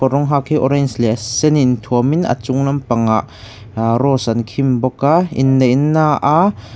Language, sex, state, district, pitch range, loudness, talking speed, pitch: Mizo, male, Mizoram, Aizawl, 120-140 Hz, -15 LUFS, 185 wpm, 130 Hz